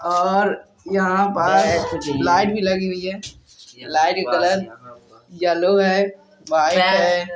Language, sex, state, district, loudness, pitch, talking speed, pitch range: Hindi, male, Andhra Pradesh, Anantapur, -19 LUFS, 180 Hz, 115 wpm, 165-190 Hz